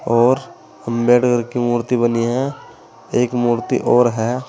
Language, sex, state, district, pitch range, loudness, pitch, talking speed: Hindi, male, Uttar Pradesh, Saharanpur, 120-125 Hz, -17 LUFS, 120 Hz, 135 wpm